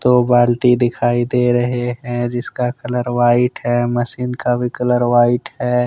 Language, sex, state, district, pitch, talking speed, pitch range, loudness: Hindi, male, Jharkhand, Deoghar, 120 Hz, 165 wpm, 120-125 Hz, -16 LUFS